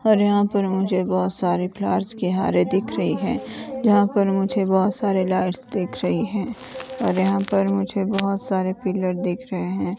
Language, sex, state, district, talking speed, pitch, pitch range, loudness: Hindi, female, Himachal Pradesh, Shimla, 185 wpm, 195 Hz, 185-205 Hz, -22 LUFS